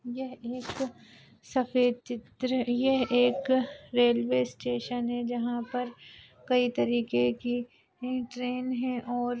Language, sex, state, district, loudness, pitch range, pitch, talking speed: Hindi, female, Jharkhand, Sahebganj, -29 LUFS, 240-255 Hz, 245 Hz, 110 wpm